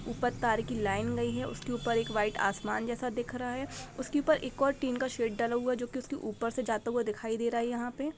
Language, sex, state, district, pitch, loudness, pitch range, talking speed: Hindi, female, Bihar, Araria, 240 Hz, -32 LUFS, 225-255 Hz, 285 wpm